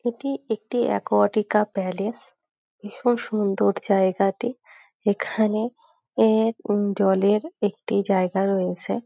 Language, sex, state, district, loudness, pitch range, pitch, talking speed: Bengali, female, West Bengal, North 24 Parganas, -23 LUFS, 195-225 Hz, 210 Hz, 95 wpm